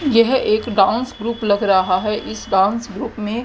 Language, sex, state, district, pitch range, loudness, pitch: Hindi, female, Haryana, Jhajjar, 205-235 Hz, -18 LUFS, 220 Hz